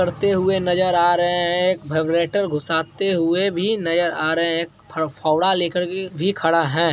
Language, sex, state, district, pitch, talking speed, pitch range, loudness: Hindi, male, Bihar, Araria, 175 Hz, 180 wpm, 165-185 Hz, -20 LUFS